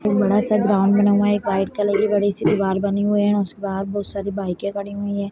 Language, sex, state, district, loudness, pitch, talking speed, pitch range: Hindi, male, Chhattisgarh, Bastar, -20 LUFS, 200 Hz, 280 wpm, 200-205 Hz